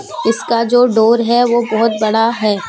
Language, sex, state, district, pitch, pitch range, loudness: Hindi, female, Jharkhand, Deoghar, 230 Hz, 220-235 Hz, -13 LUFS